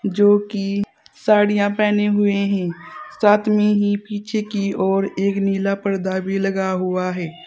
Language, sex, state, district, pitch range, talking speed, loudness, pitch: Hindi, female, Uttar Pradesh, Saharanpur, 195-205 Hz, 150 wpm, -19 LUFS, 200 Hz